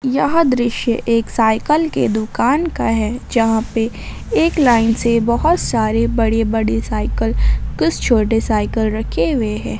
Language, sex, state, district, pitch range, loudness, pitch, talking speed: Hindi, female, Jharkhand, Ranchi, 220-245 Hz, -16 LUFS, 225 Hz, 145 wpm